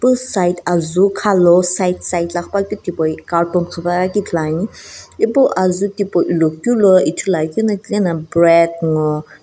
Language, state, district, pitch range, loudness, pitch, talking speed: Sumi, Nagaland, Dimapur, 170-200 Hz, -16 LUFS, 180 Hz, 140 wpm